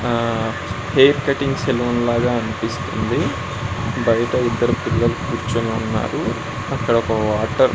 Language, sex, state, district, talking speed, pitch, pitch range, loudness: Telugu, male, Andhra Pradesh, Srikakulam, 115 wpm, 120 Hz, 110-120 Hz, -19 LUFS